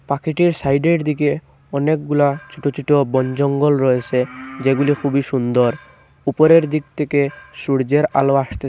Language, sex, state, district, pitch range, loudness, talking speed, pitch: Bengali, male, Assam, Hailakandi, 135-150 Hz, -18 LUFS, 125 wpm, 140 Hz